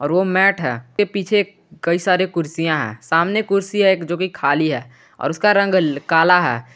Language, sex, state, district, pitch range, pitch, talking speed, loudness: Hindi, male, Jharkhand, Garhwa, 155-195 Hz, 175 Hz, 205 wpm, -18 LUFS